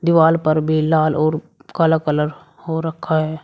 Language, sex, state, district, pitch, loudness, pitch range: Hindi, male, Uttar Pradesh, Shamli, 155 Hz, -18 LUFS, 155-160 Hz